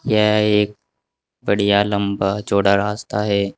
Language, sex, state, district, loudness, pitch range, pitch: Hindi, male, Uttar Pradesh, Saharanpur, -18 LUFS, 100-105 Hz, 100 Hz